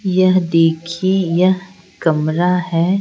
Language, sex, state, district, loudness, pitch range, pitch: Hindi, female, Bihar, Patna, -16 LUFS, 165-185 Hz, 180 Hz